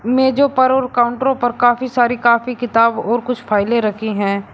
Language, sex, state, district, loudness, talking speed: Hindi, male, Uttar Pradesh, Shamli, -16 LUFS, 185 wpm